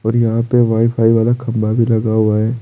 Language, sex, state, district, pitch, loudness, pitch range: Hindi, male, Uttar Pradesh, Saharanpur, 115 Hz, -14 LUFS, 110-115 Hz